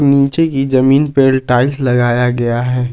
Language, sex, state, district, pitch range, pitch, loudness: Hindi, male, Jharkhand, Ranchi, 125-140 Hz, 130 Hz, -13 LUFS